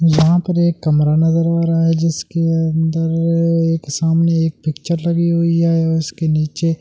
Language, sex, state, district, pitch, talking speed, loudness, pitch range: Hindi, male, Delhi, New Delhi, 165 Hz, 185 wpm, -16 LUFS, 160-165 Hz